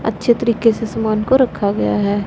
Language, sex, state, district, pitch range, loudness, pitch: Hindi, female, Punjab, Pathankot, 205-235 Hz, -16 LUFS, 225 Hz